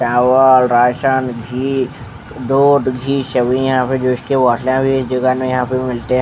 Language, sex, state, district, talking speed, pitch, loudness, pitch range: Hindi, male, Bihar, West Champaran, 185 wpm, 130 Hz, -15 LUFS, 125-130 Hz